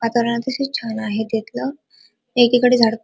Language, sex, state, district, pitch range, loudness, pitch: Marathi, female, Maharashtra, Dhule, 225-250 Hz, -19 LUFS, 235 Hz